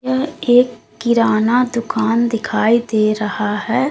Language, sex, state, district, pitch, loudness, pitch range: Hindi, female, Uttar Pradesh, Lalitpur, 230 Hz, -16 LUFS, 215-245 Hz